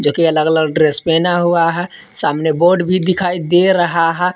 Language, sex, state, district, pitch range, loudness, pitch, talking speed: Hindi, male, Jharkhand, Palamu, 160-180 Hz, -14 LUFS, 170 Hz, 150 wpm